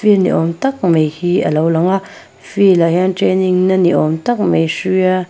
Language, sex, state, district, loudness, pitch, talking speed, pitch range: Mizo, female, Mizoram, Aizawl, -14 LUFS, 185 Hz, 240 wpm, 165-190 Hz